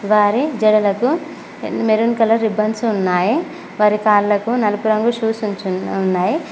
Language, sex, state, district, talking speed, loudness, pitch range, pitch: Telugu, female, Telangana, Mahabubabad, 120 wpm, -17 LUFS, 205-235 Hz, 215 Hz